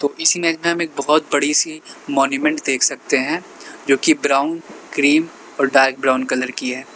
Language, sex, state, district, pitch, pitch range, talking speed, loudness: Hindi, male, Uttar Pradesh, Lalitpur, 150 Hz, 135-170 Hz, 200 wpm, -17 LUFS